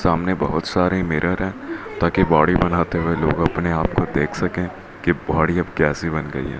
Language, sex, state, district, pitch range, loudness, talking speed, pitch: Hindi, male, Rajasthan, Bikaner, 80-90 Hz, -20 LUFS, 200 wpm, 85 Hz